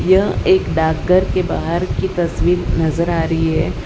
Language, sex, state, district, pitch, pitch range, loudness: Hindi, female, Gujarat, Valsad, 170 Hz, 160-185 Hz, -17 LUFS